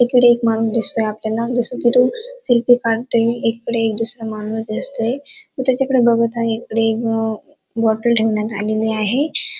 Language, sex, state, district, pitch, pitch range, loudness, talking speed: Marathi, female, Maharashtra, Dhule, 230 Hz, 225-245 Hz, -18 LUFS, 175 wpm